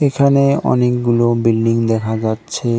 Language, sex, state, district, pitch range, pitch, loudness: Bengali, male, West Bengal, Cooch Behar, 115-125 Hz, 120 Hz, -15 LUFS